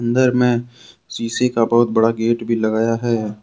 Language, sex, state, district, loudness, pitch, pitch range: Hindi, male, Jharkhand, Deoghar, -18 LUFS, 115 Hz, 115-120 Hz